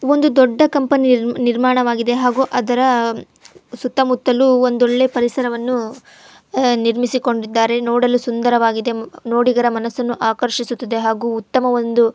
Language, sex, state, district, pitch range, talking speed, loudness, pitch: Kannada, female, Karnataka, Chamarajanagar, 235-255 Hz, 110 wpm, -16 LUFS, 245 Hz